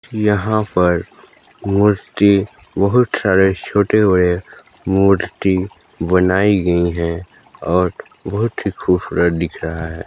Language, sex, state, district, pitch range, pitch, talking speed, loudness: Hindi, male, Chhattisgarh, Balrampur, 90-100 Hz, 95 Hz, 100 wpm, -16 LUFS